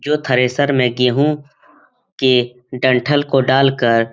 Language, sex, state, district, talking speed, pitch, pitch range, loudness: Hindi, male, Bihar, Jamui, 130 wpm, 130 Hz, 125-145 Hz, -15 LUFS